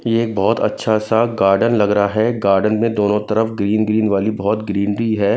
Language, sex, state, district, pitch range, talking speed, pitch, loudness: Hindi, male, Punjab, Kapurthala, 100-110 Hz, 210 wpm, 110 Hz, -17 LUFS